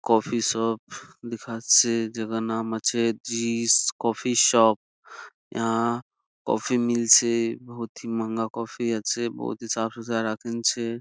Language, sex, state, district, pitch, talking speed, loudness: Bengali, male, West Bengal, Purulia, 115 Hz, 120 wpm, -24 LUFS